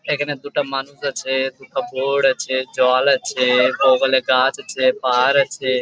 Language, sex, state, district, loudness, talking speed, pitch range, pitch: Bengali, male, West Bengal, Jhargram, -18 LUFS, 165 wpm, 130-140 Hz, 135 Hz